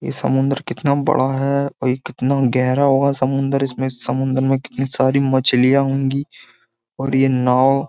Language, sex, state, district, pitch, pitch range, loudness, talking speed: Hindi, male, Uttar Pradesh, Jyotiba Phule Nagar, 135 Hz, 130-140 Hz, -18 LUFS, 165 wpm